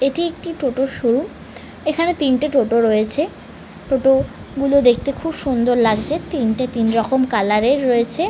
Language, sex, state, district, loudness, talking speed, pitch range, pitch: Bengali, female, West Bengal, North 24 Parganas, -17 LUFS, 145 wpm, 235-285 Hz, 265 Hz